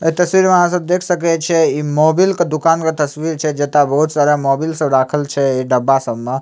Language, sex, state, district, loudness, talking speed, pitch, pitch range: Maithili, male, Bihar, Samastipur, -15 LUFS, 250 wpm, 155 Hz, 145-165 Hz